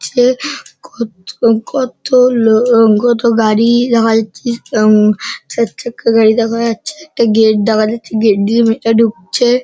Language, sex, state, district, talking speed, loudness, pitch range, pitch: Bengali, male, West Bengal, Dakshin Dinajpur, 130 wpm, -12 LUFS, 220-240 Hz, 230 Hz